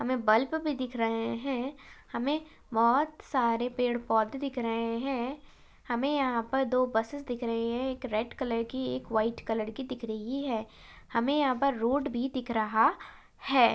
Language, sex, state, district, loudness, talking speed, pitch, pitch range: Hindi, female, Maharashtra, Chandrapur, -30 LUFS, 180 wpm, 245 Hz, 230-270 Hz